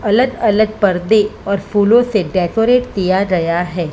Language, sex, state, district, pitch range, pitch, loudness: Hindi, female, Maharashtra, Mumbai Suburban, 185-220 Hz, 205 Hz, -15 LUFS